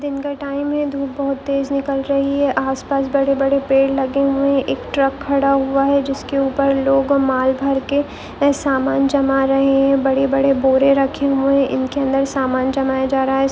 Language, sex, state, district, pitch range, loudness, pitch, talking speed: Hindi, female, Goa, North and South Goa, 270-275 Hz, -17 LUFS, 275 Hz, 195 wpm